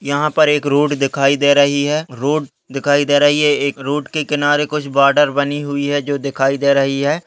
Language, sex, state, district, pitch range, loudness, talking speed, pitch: Hindi, male, Chhattisgarh, Sarguja, 140-145 Hz, -15 LUFS, 225 wpm, 145 Hz